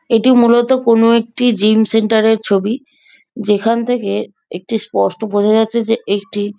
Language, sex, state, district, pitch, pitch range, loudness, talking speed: Bengali, female, West Bengal, Jhargram, 225 Hz, 210-240 Hz, -14 LUFS, 135 wpm